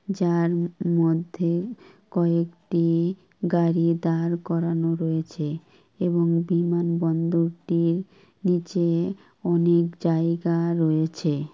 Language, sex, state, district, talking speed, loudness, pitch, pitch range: Bengali, female, West Bengal, Kolkata, 75 wpm, -24 LUFS, 170 Hz, 165-175 Hz